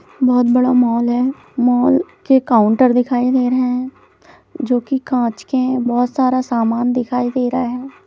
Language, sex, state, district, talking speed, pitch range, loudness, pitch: Hindi, female, Chhattisgarh, Bilaspur, 170 wpm, 245-260 Hz, -16 LUFS, 250 Hz